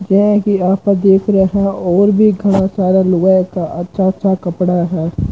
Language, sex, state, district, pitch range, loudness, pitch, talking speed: Marwari, male, Rajasthan, Churu, 185-200 Hz, -13 LUFS, 190 Hz, 170 wpm